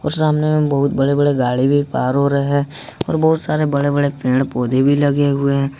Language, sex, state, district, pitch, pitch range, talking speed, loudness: Hindi, male, Jharkhand, Ranchi, 140 Hz, 135-145 Hz, 225 wpm, -16 LUFS